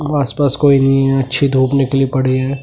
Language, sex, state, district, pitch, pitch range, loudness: Hindi, male, Delhi, New Delhi, 135 Hz, 130-140 Hz, -13 LUFS